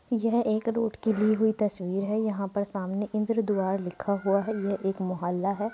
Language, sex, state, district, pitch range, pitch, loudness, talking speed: Hindi, female, Uttar Pradesh, Muzaffarnagar, 195-220 Hz, 205 Hz, -28 LUFS, 210 wpm